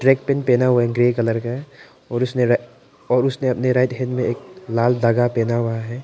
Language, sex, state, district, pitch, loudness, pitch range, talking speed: Hindi, male, Arunachal Pradesh, Papum Pare, 125 Hz, -19 LUFS, 120-130 Hz, 230 wpm